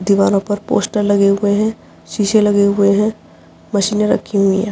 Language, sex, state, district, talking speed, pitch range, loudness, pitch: Hindi, female, Uttar Pradesh, Jyotiba Phule Nagar, 180 wpm, 200-210 Hz, -15 LUFS, 205 Hz